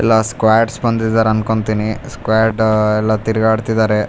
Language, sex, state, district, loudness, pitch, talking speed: Kannada, male, Karnataka, Raichur, -15 LUFS, 110 Hz, 105 wpm